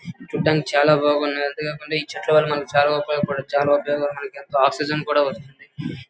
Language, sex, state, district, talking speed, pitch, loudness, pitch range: Telugu, male, Andhra Pradesh, Guntur, 160 wpm, 145 Hz, -21 LUFS, 145-150 Hz